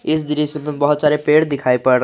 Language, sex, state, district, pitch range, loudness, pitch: Hindi, male, Jharkhand, Garhwa, 140-150 Hz, -17 LUFS, 150 Hz